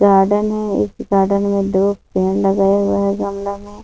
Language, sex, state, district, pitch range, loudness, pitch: Hindi, female, Jharkhand, Palamu, 195-200 Hz, -17 LUFS, 200 Hz